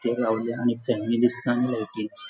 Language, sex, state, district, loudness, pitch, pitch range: Konkani, male, Goa, North and South Goa, -25 LUFS, 120 Hz, 115-120 Hz